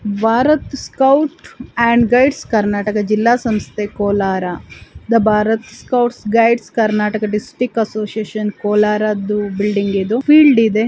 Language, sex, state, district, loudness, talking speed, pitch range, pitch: Kannada, female, Karnataka, Chamarajanagar, -15 LUFS, 105 wpm, 210-235 Hz, 215 Hz